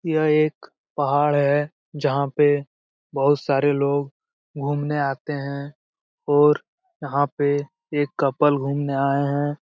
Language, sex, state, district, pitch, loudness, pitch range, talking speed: Hindi, male, Bihar, Lakhisarai, 145 Hz, -22 LUFS, 140-150 Hz, 130 wpm